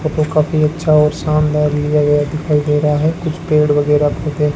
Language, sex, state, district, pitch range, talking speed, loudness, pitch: Hindi, male, Rajasthan, Bikaner, 150-155 Hz, 225 wpm, -15 LUFS, 150 Hz